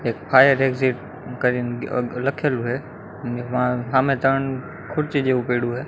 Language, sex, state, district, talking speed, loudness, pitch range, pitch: Gujarati, male, Gujarat, Gandhinagar, 135 wpm, -21 LUFS, 125-135 Hz, 130 Hz